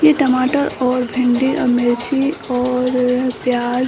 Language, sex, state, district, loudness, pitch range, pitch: Hindi, female, Bihar, Samastipur, -17 LUFS, 250-265 Hz, 250 Hz